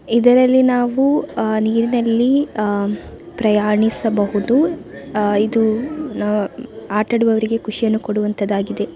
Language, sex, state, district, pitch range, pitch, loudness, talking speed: Kannada, female, Karnataka, Dakshina Kannada, 210-245 Hz, 225 Hz, -17 LUFS, 85 wpm